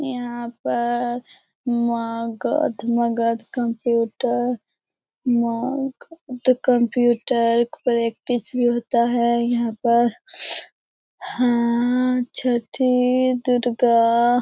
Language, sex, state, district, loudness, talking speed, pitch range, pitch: Hindi, female, Bihar, Lakhisarai, -21 LUFS, 70 wpm, 235-250 Hz, 240 Hz